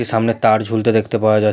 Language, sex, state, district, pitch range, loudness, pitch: Bengali, male, West Bengal, Jhargram, 110-115 Hz, -16 LUFS, 110 Hz